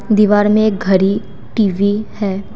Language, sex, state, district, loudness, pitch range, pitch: Hindi, female, Assam, Kamrup Metropolitan, -15 LUFS, 200-210 Hz, 205 Hz